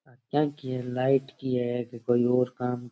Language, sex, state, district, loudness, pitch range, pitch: Rajasthani, male, Rajasthan, Churu, -28 LUFS, 120-135 Hz, 125 Hz